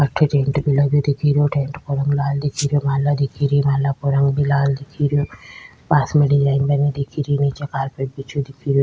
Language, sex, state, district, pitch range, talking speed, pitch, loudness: Rajasthani, female, Rajasthan, Nagaur, 140-145 Hz, 225 wpm, 140 Hz, -19 LUFS